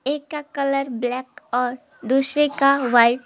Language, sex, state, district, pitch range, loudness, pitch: Hindi, female, West Bengal, Alipurduar, 250-285 Hz, -21 LUFS, 270 Hz